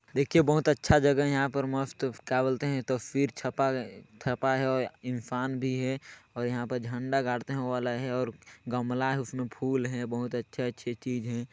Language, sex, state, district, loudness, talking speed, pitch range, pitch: Hindi, male, Chhattisgarh, Sarguja, -30 LUFS, 190 wpm, 125-135 Hz, 130 Hz